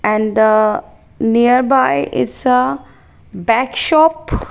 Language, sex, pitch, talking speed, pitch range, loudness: English, female, 250 Hz, 95 wpm, 215-265 Hz, -14 LUFS